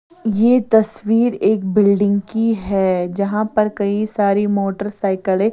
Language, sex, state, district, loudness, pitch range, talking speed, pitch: Hindi, female, Bihar, West Champaran, -17 LUFS, 200-220 Hz, 130 wpm, 210 Hz